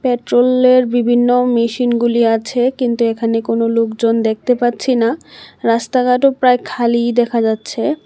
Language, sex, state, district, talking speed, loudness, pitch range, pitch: Bengali, female, Tripura, West Tripura, 120 wpm, -14 LUFS, 230-250 Hz, 240 Hz